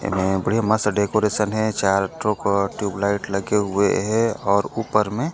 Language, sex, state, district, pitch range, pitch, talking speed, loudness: Chhattisgarhi, male, Chhattisgarh, Korba, 100-110 Hz, 105 Hz, 180 wpm, -21 LUFS